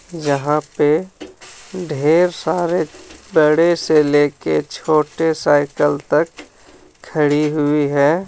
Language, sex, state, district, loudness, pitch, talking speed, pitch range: Hindi, male, Jharkhand, Ranchi, -17 LUFS, 150 Hz, 95 wpm, 145-165 Hz